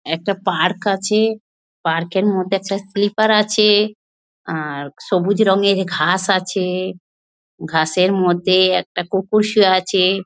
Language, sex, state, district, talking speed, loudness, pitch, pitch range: Bengali, female, West Bengal, North 24 Parganas, 125 wpm, -17 LUFS, 190 Hz, 180-205 Hz